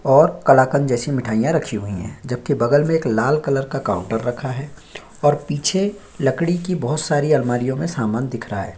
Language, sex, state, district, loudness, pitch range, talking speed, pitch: Hindi, male, Chhattisgarh, Korba, -19 LUFS, 120-155 Hz, 205 wpm, 135 Hz